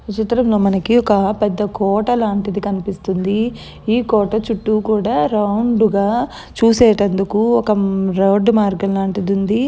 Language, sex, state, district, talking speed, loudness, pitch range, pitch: Telugu, female, Andhra Pradesh, Guntur, 120 wpm, -16 LUFS, 195-225 Hz, 210 Hz